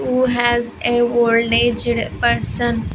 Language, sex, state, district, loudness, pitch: English, female, Andhra Pradesh, Sri Satya Sai, -17 LUFS, 235 Hz